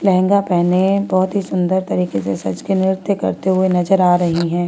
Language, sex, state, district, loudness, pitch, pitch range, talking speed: Hindi, female, Chhattisgarh, Korba, -16 LUFS, 185 Hz, 175-190 Hz, 180 wpm